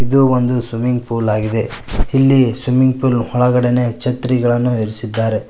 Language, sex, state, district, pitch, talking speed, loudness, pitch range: Kannada, male, Karnataka, Koppal, 125 Hz, 130 wpm, -15 LUFS, 115-125 Hz